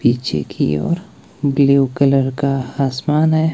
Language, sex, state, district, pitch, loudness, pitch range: Hindi, male, Himachal Pradesh, Shimla, 140 Hz, -17 LUFS, 130-150 Hz